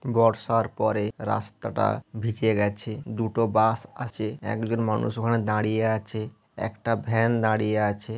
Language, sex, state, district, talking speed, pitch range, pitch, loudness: Bengali, male, West Bengal, Malda, 125 wpm, 110-115 Hz, 110 Hz, -26 LUFS